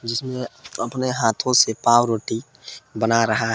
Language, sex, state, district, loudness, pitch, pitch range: Hindi, male, Jharkhand, Palamu, -20 LUFS, 115 Hz, 115-125 Hz